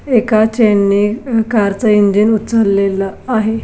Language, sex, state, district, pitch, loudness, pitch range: Marathi, female, Maharashtra, Aurangabad, 215 Hz, -13 LUFS, 200-225 Hz